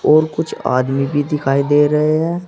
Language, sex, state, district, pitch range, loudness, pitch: Hindi, male, Uttar Pradesh, Saharanpur, 135-155 Hz, -16 LUFS, 150 Hz